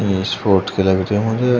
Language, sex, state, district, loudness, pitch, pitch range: Hindi, male, Uttar Pradesh, Shamli, -17 LUFS, 100 Hz, 95-110 Hz